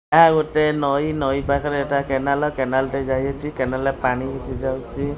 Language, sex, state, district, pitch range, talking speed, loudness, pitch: Odia, female, Odisha, Khordha, 135-145 Hz, 175 wpm, -21 LUFS, 140 Hz